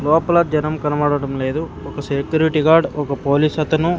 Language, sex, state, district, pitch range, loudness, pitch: Telugu, male, Andhra Pradesh, Sri Satya Sai, 145-160 Hz, -18 LUFS, 150 Hz